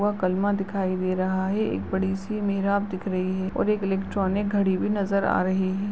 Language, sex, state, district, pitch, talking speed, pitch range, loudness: Hindi, female, Bihar, Supaul, 195 Hz, 235 wpm, 190-200 Hz, -25 LUFS